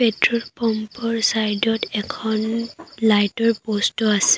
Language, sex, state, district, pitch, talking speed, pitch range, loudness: Assamese, female, Assam, Kamrup Metropolitan, 225 Hz, 150 wpm, 215-230 Hz, -21 LUFS